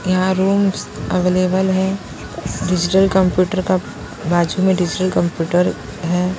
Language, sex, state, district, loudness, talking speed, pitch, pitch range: Hindi, female, Punjab, Pathankot, -18 LUFS, 115 wpm, 185 Hz, 180-190 Hz